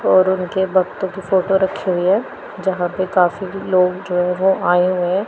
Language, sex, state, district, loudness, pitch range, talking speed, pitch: Hindi, female, Punjab, Pathankot, -18 LUFS, 180-190 Hz, 215 wpm, 185 Hz